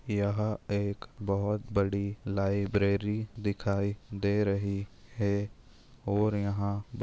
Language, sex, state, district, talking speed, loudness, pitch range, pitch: Hindi, male, Maharashtra, Dhule, 95 wpm, -31 LUFS, 100-105 Hz, 100 Hz